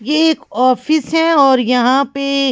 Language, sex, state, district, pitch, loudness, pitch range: Hindi, female, Chhattisgarh, Raipur, 275 Hz, -13 LUFS, 255-315 Hz